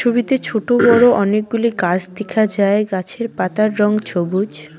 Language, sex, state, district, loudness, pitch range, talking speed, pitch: Bengali, female, West Bengal, Cooch Behar, -16 LUFS, 190-235 Hz, 150 wpm, 215 Hz